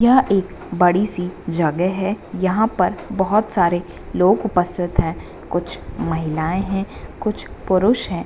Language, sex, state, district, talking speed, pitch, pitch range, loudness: Hindi, female, Bihar, Bhagalpur, 130 wpm, 190 Hz, 175-210 Hz, -19 LUFS